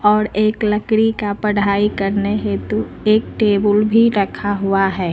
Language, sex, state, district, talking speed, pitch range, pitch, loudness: Hindi, female, Uttar Pradesh, Lucknow, 150 wpm, 200-215 Hz, 210 Hz, -17 LUFS